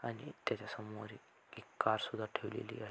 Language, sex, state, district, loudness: Marathi, male, Maharashtra, Sindhudurg, -41 LUFS